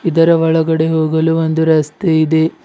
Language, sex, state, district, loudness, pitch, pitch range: Kannada, male, Karnataka, Bidar, -13 LUFS, 160 Hz, 160-165 Hz